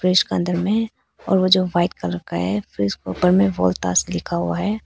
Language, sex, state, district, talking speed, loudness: Hindi, female, Arunachal Pradesh, Papum Pare, 220 wpm, -20 LUFS